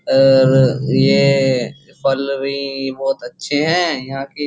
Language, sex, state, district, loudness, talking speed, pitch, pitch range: Hindi, male, Uttar Pradesh, Jyotiba Phule Nagar, -16 LUFS, 135 wpm, 135 Hz, 130-140 Hz